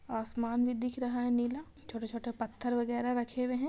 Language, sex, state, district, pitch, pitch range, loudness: Hindi, female, Bihar, Lakhisarai, 240 Hz, 235-250 Hz, -34 LUFS